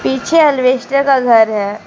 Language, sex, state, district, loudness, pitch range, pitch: Hindi, female, Jharkhand, Deoghar, -12 LUFS, 210-275 Hz, 255 Hz